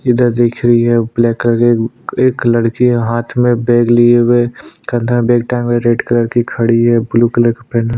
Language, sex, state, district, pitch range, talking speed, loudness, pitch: Hindi, male, Uttarakhand, Tehri Garhwal, 115-120 Hz, 220 wpm, -12 LUFS, 120 Hz